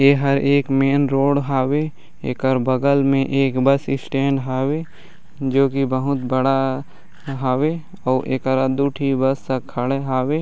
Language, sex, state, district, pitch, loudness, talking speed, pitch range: Chhattisgarhi, male, Chhattisgarh, Raigarh, 135 Hz, -19 LUFS, 150 wpm, 130-140 Hz